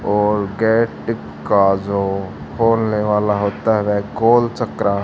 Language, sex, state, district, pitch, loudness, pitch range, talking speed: Hindi, male, Haryana, Charkhi Dadri, 105 Hz, -17 LUFS, 100-110 Hz, 120 wpm